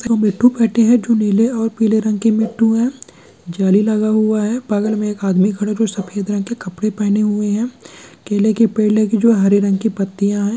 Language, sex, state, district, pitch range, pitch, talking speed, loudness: Hindi, male, Andhra Pradesh, Guntur, 205-225 Hz, 215 Hz, 215 wpm, -16 LUFS